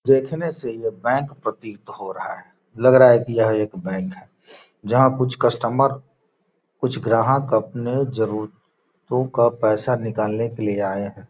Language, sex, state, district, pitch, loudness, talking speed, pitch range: Hindi, male, Bihar, Gopalganj, 120 Hz, -20 LUFS, 160 wpm, 110-130 Hz